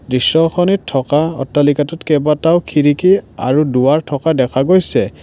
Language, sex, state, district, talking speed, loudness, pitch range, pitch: Assamese, male, Assam, Kamrup Metropolitan, 115 wpm, -14 LUFS, 135-165 Hz, 150 Hz